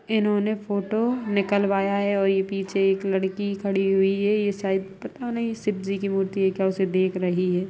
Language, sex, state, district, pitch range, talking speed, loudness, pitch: Hindi, female, Bihar, Sitamarhi, 190-205 Hz, 220 wpm, -24 LUFS, 195 Hz